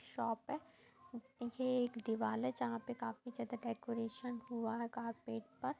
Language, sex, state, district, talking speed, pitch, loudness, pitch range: Hindi, female, Bihar, East Champaran, 155 wpm, 235 Hz, -42 LUFS, 230-245 Hz